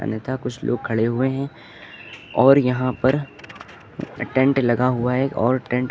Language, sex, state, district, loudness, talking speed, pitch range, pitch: Hindi, male, Uttar Pradesh, Lucknow, -20 LUFS, 175 wpm, 120-135 Hz, 125 Hz